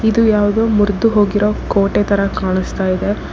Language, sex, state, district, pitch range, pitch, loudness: Kannada, female, Karnataka, Bangalore, 195-215 Hz, 205 Hz, -15 LUFS